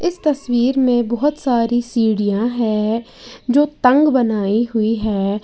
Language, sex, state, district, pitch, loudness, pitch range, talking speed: Hindi, female, Uttar Pradesh, Lalitpur, 240 Hz, -17 LUFS, 220-260 Hz, 130 wpm